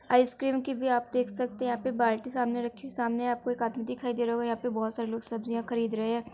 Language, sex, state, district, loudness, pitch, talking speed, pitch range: Hindi, female, Uttar Pradesh, Varanasi, -30 LUFS, 240 Hz, 285 wpm, 230-250 Hz